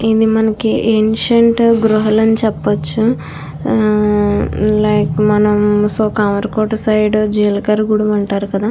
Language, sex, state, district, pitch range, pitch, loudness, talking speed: Telugu, female, Andhra Pradesh, Krishna, 210-220 Hz, 215 Hz, -14 LUFS, 110 wpm